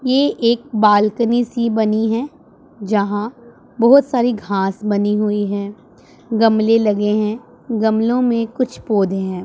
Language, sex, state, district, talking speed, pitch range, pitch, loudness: Hindi, female, Punjab, Pathankot, 135 wpm, 210-240 Hz, 220 Hz, -17 LUFS